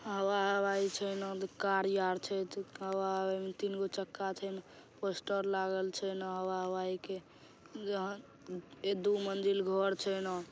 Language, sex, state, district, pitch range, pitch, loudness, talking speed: Maithili, female, Bihar, Saharsa, 190-195 Hz, 195 Hz, -36 LUFS, 160 wpm